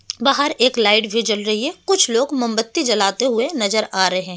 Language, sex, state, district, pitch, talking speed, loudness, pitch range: Hindi, female, Delhi, New Delhi, 230 Hz, 220 wpm, -17 LUFS, 215-275 Hz